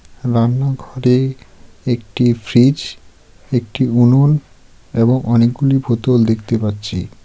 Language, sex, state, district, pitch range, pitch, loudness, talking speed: Bengali, male, West Bengal, Darjeeling, 110-130 Hz, 120 Hz, -15 LUFS, 85 wpm